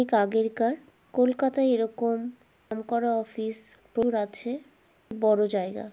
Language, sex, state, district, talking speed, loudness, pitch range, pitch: Bengali, female, West Bengal, Kolkata, 100 wpm, -27 LUFS, 220-250 Hz, 230 Hz